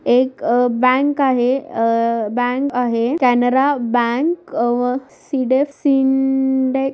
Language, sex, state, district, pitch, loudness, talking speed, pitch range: Marathi, female, Maharashtra, Aurangabad, 255 Hz, -17 LUFS, 80 wpm, 245-270 Hz